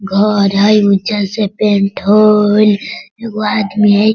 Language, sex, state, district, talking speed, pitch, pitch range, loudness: Hindi, female, Bihar, Sitamarhi, 130 wpm, 210 Hz, 200-215 Hz, -12 LUFS